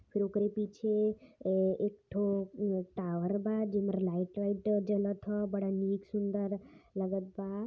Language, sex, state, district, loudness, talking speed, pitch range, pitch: Hindi, male, Uttar Pradesh, Varanasi, -34 LUFS, 140 wpm, 195-210 Hz, 200 Hz